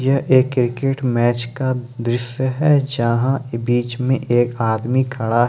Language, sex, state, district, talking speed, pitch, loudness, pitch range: Hindi, male, Jharkhand, Ranchi, 155 wpm, 125 Hz, -18 LUFS, 120-130 Hz